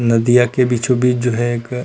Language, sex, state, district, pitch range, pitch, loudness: Chhattisgarhi, male, Chhattisgarh, Rajnandgaon, 120-125 Hz, 125 Hz, -15 LUFS